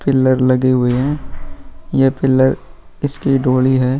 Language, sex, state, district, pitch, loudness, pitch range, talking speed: Hindi, male, Bihar, Vaishali, 130 Hz, -15 LUFS, 125-135 Hz, 120 wpm